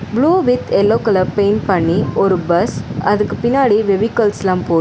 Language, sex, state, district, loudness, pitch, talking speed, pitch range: Tamil, female, Tamil Nadu, Chennai, -15 LUFS, 200 Hz, 150 wpm, 185-220 Hz